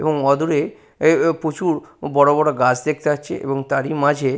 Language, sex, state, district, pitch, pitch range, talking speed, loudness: Bengali, male, West Bengal, Purulia, 145 Hz, 140-155 Hz, 180 wpm, -19 LUFS